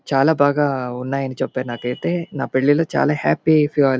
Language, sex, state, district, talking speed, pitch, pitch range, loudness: Telugu, male, Andhra Pradesh, Anantapur, 180 wpm, 135 Hz, 130-150 Hz, -19 LUFS